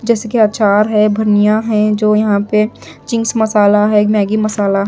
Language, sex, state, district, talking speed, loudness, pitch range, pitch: Hindi, female, Punjab, Pathankot, 185 wpm, -13 LUFS, 210-220 Hz, 210 Hz